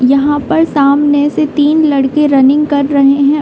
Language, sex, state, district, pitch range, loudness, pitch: Hindi, female, Uttar Pradesh, Hamirpur, 280-300 Hz, -10 LUFS, 290 Hz